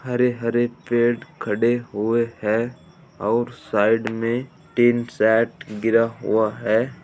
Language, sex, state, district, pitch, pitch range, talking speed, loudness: Hindi, male, Uttar Pradesh, Muzaffarnagar, 115 Hz, 110-120 Hz, 120 wpm, -21 LUFS